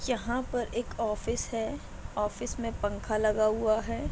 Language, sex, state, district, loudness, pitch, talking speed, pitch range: Hindi, female, Bihar, Madhepura, -31 LUFS, 225 Hz, 160 wpm, 215-240 Hz